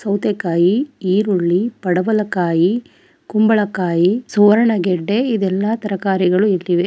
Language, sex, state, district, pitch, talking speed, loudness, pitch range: Kannada, female, Karnataka, Chamarajanagar, 200 Hz, 70 wpm, -16 LUFS, 180-215 Hz